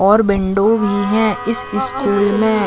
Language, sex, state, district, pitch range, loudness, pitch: Hindi, female, Chhattisgarh, Raigarh, 200-220 Hz, -15 LUFS, 205 Hz